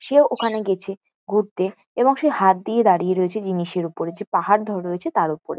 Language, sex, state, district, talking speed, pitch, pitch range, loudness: Bengali, female, West Bengal, Kolkata, 195 wpm, 195 Hz, 180-215 Hz, -21 LUFS